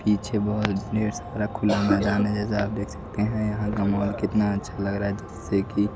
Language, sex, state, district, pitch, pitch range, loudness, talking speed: Hindi, male, Odisha, Nuapada, 105 Hz, 100-105 Hz, -25 LUFS, 210 wpm